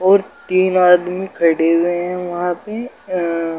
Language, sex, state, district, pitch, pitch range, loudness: Hindi, male, Bihar, Darbhanga, 180 Hz, 170-185 Hz, -17 LUFS